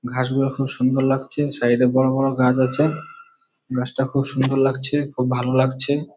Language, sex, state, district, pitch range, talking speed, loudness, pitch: Bengali, male, West Bengal, Malda, 130-140 Hz, 185 wpm, -20 LUFS, 135 Hz